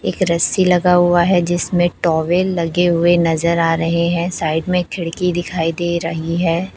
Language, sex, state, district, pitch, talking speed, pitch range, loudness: Hindi, female, Chhattisgarh, Raipur, 175 Hz, 175 wpm, 165-180 Hz, -16 LUFS